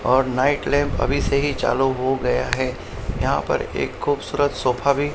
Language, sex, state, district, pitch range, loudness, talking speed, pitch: Hindi, male, Maharashtra, Mumbai Suburban, 130-145 Hz, -21 LUFS, 185 wpm, 135 Hz